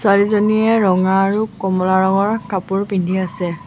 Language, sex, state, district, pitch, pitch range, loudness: Assamese, female, Assam, Sonitpur, 195 Hz, 190-205 Hz, -16 LUFS